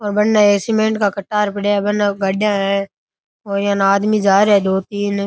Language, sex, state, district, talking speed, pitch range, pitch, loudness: Rajasthani, male, Rajasthan, Nagaur, 170 wpm, 200-210 Hz, 205 Hz, -16 LUFS